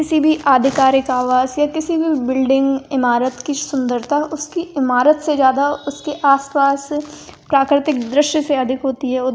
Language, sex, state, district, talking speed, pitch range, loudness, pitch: Hindi, female, Uttar Pradesh, Varanasi, 160 wpm, 260-300 Hz, -16 LUFS, 275 Hz